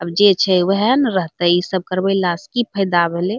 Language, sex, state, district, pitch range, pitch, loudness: Angika, female, Bihar, Bhagalpur, 175-200 Hz, 190 Hz, -17 LUFS